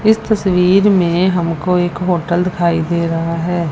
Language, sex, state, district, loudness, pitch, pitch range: Hindi, female, Punjab, Fazilka, -15 LUFS, 175 Hz, 170-185 Hz